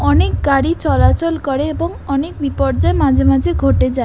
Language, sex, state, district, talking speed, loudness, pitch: Bengali, female, West Bengal, Jhargram, 165 wpm, -15 LUFS, 270 Hz